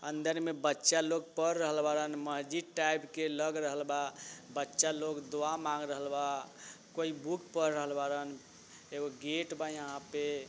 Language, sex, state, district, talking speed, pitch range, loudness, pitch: Bajjika, male, Bihar, Vaishali, 165 wpm, 145-160 Hz, -35 LUFS, 150 Hz